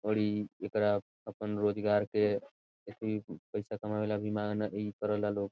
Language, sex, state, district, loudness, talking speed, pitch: Bhojpuri, male, Bihar, Saran, -34 LUFS, 165 wpm, 105 Hz